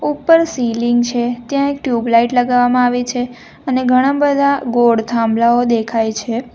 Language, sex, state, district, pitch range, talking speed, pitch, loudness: Gujarati, female, Gujarat, Valsad, 235-255 Hz, 145 wpm, 245 Hz, -15 LUFS